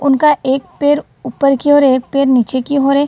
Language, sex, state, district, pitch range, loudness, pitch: Hindi, female, Bihar, Gaya, 260-290 Hz, -13 LUFS, 275 Hz